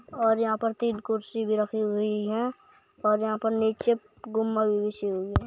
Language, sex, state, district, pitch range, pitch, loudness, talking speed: Hindi, male, Uttar Pradesh, Hamirpur, 210-225 Hz, 220 Hz, -27 LUFS, 195 wpm